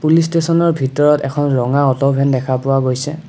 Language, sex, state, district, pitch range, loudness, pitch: Assamese, male, Assam, Kamrup Metropolitan, 135-155 Hz, -15 LUFS, 140 Hz